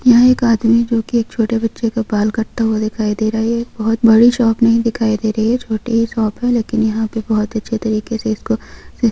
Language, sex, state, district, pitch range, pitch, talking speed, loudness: Hindi, female, Jharkhand, Sahebganj, 220-230 Hz, 225 Hz, 235 wpm, -16 LUFS